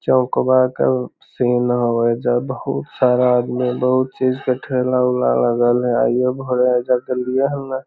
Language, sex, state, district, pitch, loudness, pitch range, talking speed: Magahi, male, Bihar, Lakhisarai, 125 Hz, -18 LUFS, 125-130 Hz, 130 wpm